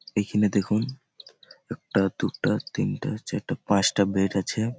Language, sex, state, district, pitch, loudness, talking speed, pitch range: Bengali, male, West Bengal, Malda, 100 Hz, -26 LUFS, 115 wpm, 95-110 Hz